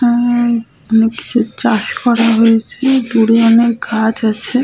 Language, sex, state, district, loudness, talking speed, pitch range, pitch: Bengali, female, West Bengal, Malda, -13 LUFS, 90 wpm, 225-240 Hz, 230 Hz